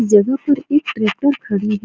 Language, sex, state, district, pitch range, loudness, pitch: Hindi, female, Bihar, Supaul, 210-285 Hz, -17 LUFS, 225 Hz